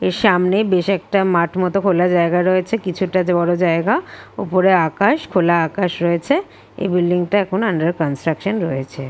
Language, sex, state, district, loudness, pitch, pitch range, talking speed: Bengali, female, West Bengal, Kolkata, -17 LUFS, 180 Hz, 170-195 Hz, 160 wpm